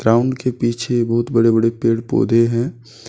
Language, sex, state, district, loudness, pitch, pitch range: Hindi, male, Jharkhand, Deoghar, -17 LUFS, 115 Hz, 115-120 Hz